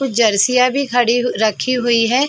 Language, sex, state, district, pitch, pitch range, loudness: Hindi, female, Chhattisgarh, Sarguja, 245 Hz, 230-255 Hz, -15 LUFS